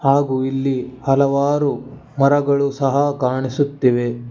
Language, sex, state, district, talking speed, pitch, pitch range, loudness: Kannada, male, Karnataka, Bangalore, 85 wpm, 135 Hz, 130-140 Hz, -18 LUFS